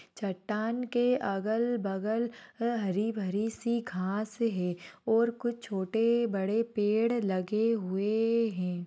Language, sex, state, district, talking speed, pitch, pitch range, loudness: Hindi, female, Bihar, Jahanabad, 95 wpm, 220 Hz, 195-235 Hz, -31 LUFS